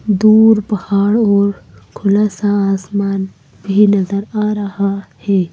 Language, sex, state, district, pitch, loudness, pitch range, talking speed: Hindi, female, Madhya Pradesh, Bhopal, 200 Hz, -14 LUFS, 195-210 Hz, 120 wpm